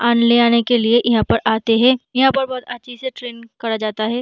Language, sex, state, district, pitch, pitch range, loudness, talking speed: Hindi, female, Chhattisgarh, Balrampur, 235 Hz, 230-250 Hz, -16 LUFS, 240 wpm